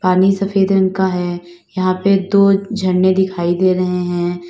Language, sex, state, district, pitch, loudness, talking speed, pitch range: Hindi, female, Uttar Pradesh, Lalitpur, 185 Hz, -15 LUFS, 175 wpm, 180-195 Hz